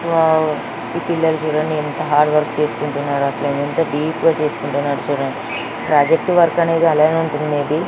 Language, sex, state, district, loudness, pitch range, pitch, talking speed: Telugu, female, Andhra Pradesh, Srikakulam, -17 LUFS, 145-165 Hz, 150 Hz, 165 wpm